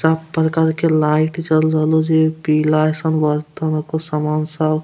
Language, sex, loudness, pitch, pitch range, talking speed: Angika, male, -17 LUFS, 155 Hz, 155-160 Hz, 175 wpm